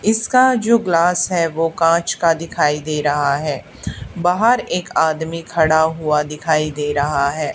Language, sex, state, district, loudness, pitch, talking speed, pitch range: Hindi, female, Haryana, Charkhi Dadri, -17 LUFS, 165 Hz, 160 wpm, 150-175 Hz